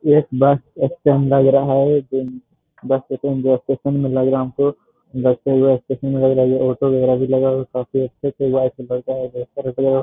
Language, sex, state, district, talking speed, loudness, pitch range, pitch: Hindi, male, Bihar, Jamui, 150 wpm, -18 LUFS, 130-140 Hz, 135 Hz